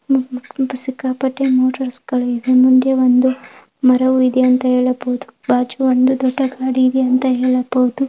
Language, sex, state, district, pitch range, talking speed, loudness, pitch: Kannada, female, Karnataka, Gulbarga, 255-260 Hz, 140 wpm, -16 LUFS, 255 Hz